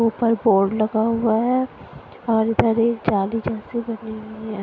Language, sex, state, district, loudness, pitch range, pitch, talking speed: Hindi, female, Punjab, Fazilka, -21 LUFS, 220-230 Hz, 225 Hz, 170 wpm